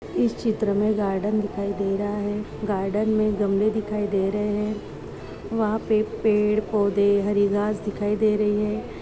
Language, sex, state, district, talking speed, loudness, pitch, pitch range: Hindi, female, Maharashtra, Dhule, 165 wpm, -24 LUFS, 210 Hz, 200-215 Hz